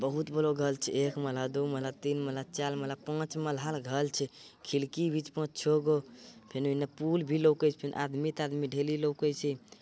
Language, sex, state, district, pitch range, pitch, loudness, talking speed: Angika, male, Bihar, Bhagalpur, 140-155 Hz, 145 Hz, -32 LUFS, 205 wpm